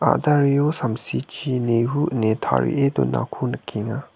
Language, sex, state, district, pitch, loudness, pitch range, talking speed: Garo, male, Meghalaya, West Garo Hills, 125 Hz, -22 LUFS, 110-145 Hz, 100 wpm